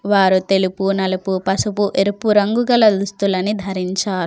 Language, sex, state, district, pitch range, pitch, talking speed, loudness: Telugu, female, Telangana, Komaram Bheem, 190-205 Hz, 195 Hz, 125 wpm, -17 LUFS